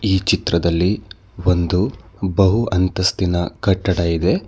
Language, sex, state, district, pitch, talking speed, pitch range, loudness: Kannada, male, Karnataka, Bangalore, 95 Hz, 95 wpm, 90-100 Hz, -18 LUFS